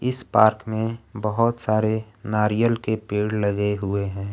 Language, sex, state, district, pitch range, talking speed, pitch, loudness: Hindi, male, Bihar, Kaimur, 105-110 Hz, 150 wpm, 110 Hz, -23 LUFS